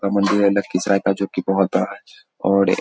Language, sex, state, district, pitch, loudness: Hindi, male, Bihar, Lakhisarai, 100 Hz, -19 LUFS